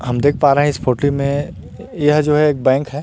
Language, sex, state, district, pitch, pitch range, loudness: Hindi, male, Chhattisgarh, Rajnandgaon, 145 Hz, 140-150 Hz, -16 LUFS